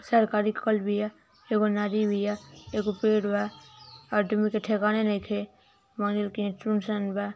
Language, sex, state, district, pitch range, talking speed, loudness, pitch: Hindi, female, Uttar Pradesh, Ghazipur, 205-215 Hz, 145 wpm, -28 LUFS, 210 Hz